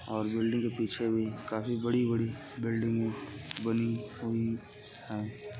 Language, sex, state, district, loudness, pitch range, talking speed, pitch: Hindi, male, Uttar Pradesh, Gorakhpur, -33 LUFS, 110-115 Hz, 120 wpm, 115 Hz